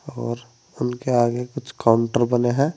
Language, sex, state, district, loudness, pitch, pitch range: Hindi, male, Uttar Pradesh, Saharanpur, -22 LUFS, 120 Hz, 120-125 Hz